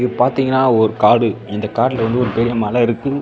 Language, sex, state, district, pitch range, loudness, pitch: Tamil, male, Tamil Nadu, Namakkal, 115-125 Hz, -16 LUFS, 120 Hz